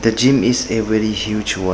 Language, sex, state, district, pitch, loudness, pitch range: English, male, Arunachal Pradesh, Papum Pare, 110 Hz, -17 LUFS, 105-115 Hz